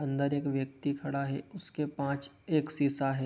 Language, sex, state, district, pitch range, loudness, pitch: Hindi, male, Bihar, Begusarai, 140-145 Hz, -33 LUFS, 140 Hz